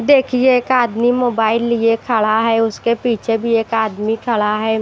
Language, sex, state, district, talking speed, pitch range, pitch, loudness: Hindi, female, Maharashtra, Washim, 175 wpm, 220-245 Hz, 230 Hz, -16 LUFS